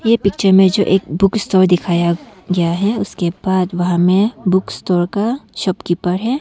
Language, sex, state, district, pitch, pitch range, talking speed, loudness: Hindi, female, Arunachal Pradesh, Longding, 190 Hz, 180-205 Hz, 185 wpm, -16 LUFS